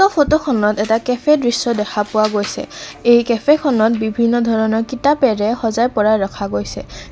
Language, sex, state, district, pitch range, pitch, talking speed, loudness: Assamese, female, Assam, Kamrup Metropolitan, 215-250 Hz, 230 Hz, 145 wpm, -16 LUFS